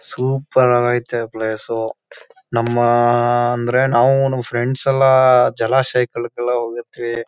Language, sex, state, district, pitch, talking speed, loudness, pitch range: Kannada, male, Karnataka, Chamarajanagar, 120 Hz, 75 wpm, -16 LUFS, 120-130 Hz